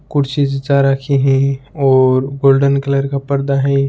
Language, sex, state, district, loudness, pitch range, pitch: Hindi, male, Rajasthan, Churu, -14 LUFS, 135-140 Hz, 140 Hz